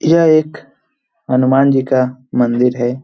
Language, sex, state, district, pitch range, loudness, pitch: Hindi, male, Bihar, Jamui, 125-140 Hz, -14 LUFS, 130 Hz